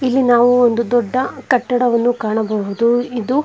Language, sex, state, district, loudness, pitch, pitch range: Kannada, female, Karnataka, Bangalore, -16 LUFS, 245 Hz, 235-250 Hz